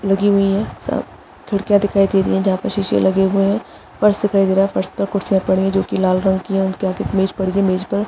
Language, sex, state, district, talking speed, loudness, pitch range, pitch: Hindi, female, Chhattisgarh, Bastar, 260 wpm, -17 LUFS, 190-200 Hz, 195 Hz